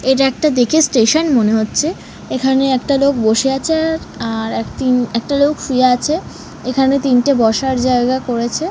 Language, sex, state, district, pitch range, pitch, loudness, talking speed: Bengali, female, West Bengal, North 24 Parganas, 240-280 Hz, 260 Hz, -15 LUFS, 160 wpm